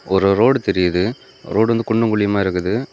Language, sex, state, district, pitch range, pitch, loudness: Tamil, male, Tamil Nadu, Kanyakumari, 95-115 Hz, 100 Hz, -17 LUFS